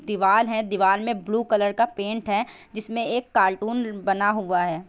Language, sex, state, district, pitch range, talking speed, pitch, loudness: Hindi, female, Bihar, East Champaran, 200-230 Hz, 185 wpm, 210 Hz, -23 LUFS